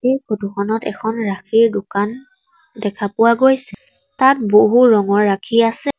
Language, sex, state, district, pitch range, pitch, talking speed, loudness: Assamese, female, Assam, Sonitpur, 205-255 Hz, 220 Hz, 140 wpm, -16 LUFS